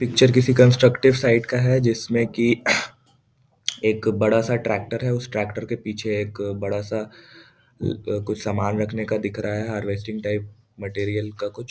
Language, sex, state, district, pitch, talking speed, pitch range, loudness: Hindi, male, Bihar, East Champaran, 110 Hz, 165 wpm, 105-120 Hz, -22 LUFS